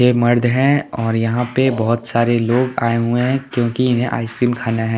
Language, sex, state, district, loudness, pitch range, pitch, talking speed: Hindi, male, Chandigarh, Chandigarh, -17 LUFS, 115-125 Hz, 120 Hz, 205 wpm